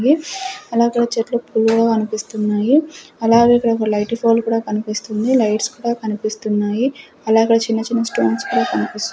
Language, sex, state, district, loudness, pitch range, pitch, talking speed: Telugu, female, Andhra Pradesh, Sri Satya Sai, -17 LUFS, 215-240 Hz, 230 Hz, 145 wpm